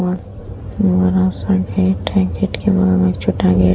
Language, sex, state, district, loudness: Hindi, female, Uttar Pradesh, Muzaffarnagar, -16 LUFS